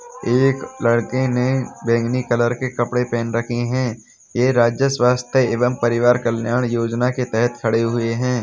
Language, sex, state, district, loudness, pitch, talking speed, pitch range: Hindi, male, Uttar Pradesh, Hamirpur, -19 LUFS, 120 Hz, 155 wpm, 115-125 Hz